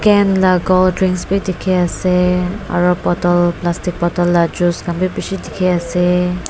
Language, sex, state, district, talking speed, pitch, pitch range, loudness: Nagamese, female, Nagaland, Dimapur, 165 wpm, 180 Hz, 175-185 Hz, -15 LUFS